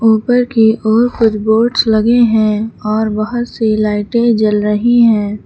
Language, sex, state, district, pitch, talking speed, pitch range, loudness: Hindi, female, Uttar Pradesh, Lucknow, 220 Hz, 155 wpm, 215-235 Hz, -12 LUFS